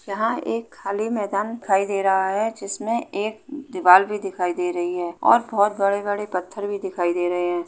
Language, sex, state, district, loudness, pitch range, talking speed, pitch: Hindi, female, Uttar Pradesh, Jalaun, -22 LUFS, 180-210 Hz, 195 wpm, 195 Hz